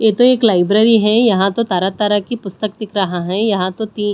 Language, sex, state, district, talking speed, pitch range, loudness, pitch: Hindi, female, Punjab, Pathankot, 245 wpm, 195-225 Hz, -15 LUFS, 210 Hz